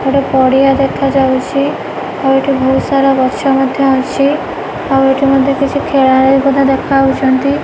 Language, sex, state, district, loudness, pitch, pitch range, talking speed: Odia, female, Odisha, Nuapada, -12 LUFS, 270 Hz, 265-275 Hz, 140 wpm